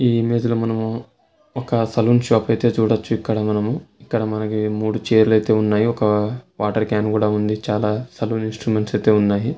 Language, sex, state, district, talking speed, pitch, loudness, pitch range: Telugu, male, Telangana, Karimnagar, 165 wpm, 110 Hz, -19 LUFS, 105-115 Hz